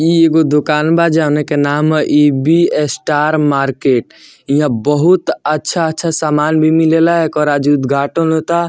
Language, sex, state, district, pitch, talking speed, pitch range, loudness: Bhojpuri, male, Bihar, Muzaffarpur, 150 Hz, 175 wpm, 145-160 Hz, -13 LUFS